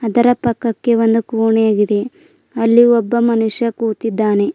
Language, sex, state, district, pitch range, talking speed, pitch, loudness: Kannada, female, Karnataka, Bidar, 220-240 Hz, 105 wpm, 230 Hz, -15 LUFS